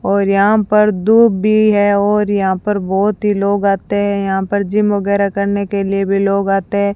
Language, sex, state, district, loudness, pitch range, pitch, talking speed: Hindi, female, Rajasthan, Bikaner, -14 LUFS, 195-210 Hz, 200 Hz, 215 wpm